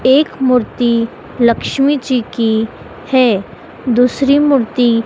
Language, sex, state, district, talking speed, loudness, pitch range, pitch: Hindi, female, Madhya Pradesh, Dhar, 95 wpm, -14 LUFS, 230-265 Hz, 245 Hz